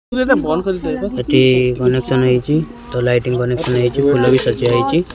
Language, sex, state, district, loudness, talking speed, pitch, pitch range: Odia, male, Odisha, Khordha, -15 LUFS, 150 wpm, 130 Hz, 125-150 Hz